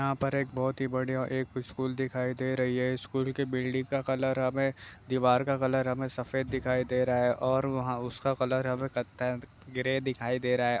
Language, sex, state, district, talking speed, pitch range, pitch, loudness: Hindi, male, Bihar, Bhagalpur, 210 wpm, 125-130 Hz, 130 Hz, -30 LUFS